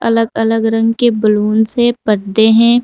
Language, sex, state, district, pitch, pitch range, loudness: Hindi, female, Uttar Pradesh, Saharanpur, 225 Hz, 220-235 Hz, -12 LUFS